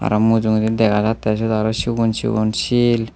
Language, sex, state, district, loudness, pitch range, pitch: Chakma, male, Tripura, Unakoti, -18 LUFS, 110-115 Hz, 110 Hz